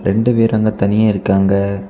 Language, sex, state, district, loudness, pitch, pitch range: Tamil, male, Tamil Nadu, Kanyakumari, -14 LUFS, 100 Hz, 100-110 Hz